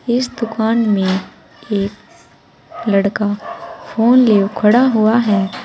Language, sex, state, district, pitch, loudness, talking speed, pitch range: Hindi, female, Uttar Pradesh, Saharanpur, 220 Hz, -15 LUFS, 105 wpm, 200-235 Hz